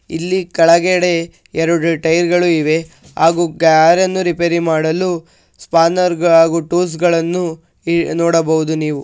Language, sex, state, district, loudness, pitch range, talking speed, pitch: Kannada, male, Karnataka, Shimoga, -14 LUFS, 165-175 Hz, 115 wpm, 170 Hz